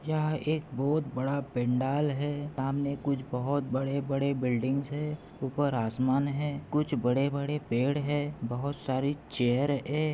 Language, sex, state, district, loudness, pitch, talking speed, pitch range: Hindi, male, Maharashtra, Pune, -30 LUFS, 140 Hz, 135 wpm, 130-145 Hz